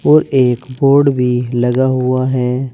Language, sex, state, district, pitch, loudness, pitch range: Hindi, male, Uttar Pradesh, Saharanpur, 130 Hz, -14 LUFS, 125-135 Hz